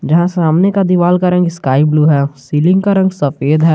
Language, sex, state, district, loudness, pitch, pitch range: Hindi, male, Jharkhand, Garhwa, -12 LUFS, 170 Hz, 150-180 Hz